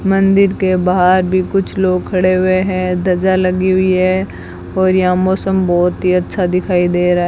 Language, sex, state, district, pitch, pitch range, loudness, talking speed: Hindi, female, Rajasthan, Bikaner, 185 Hz, 180-190 Hz, -14 LUFS, 190 wpm